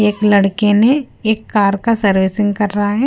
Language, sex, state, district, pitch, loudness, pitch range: Hindi, female, Punjab, Kapurthala, 210 Hz, -14 LUFS, 205-220 Hz